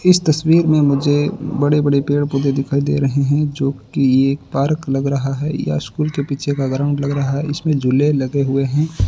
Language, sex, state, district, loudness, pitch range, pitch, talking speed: Hindi, male, Rajasthan, Bikaner, -17 LUFS, 135-145 Hz, 140 Hz, 205 wpm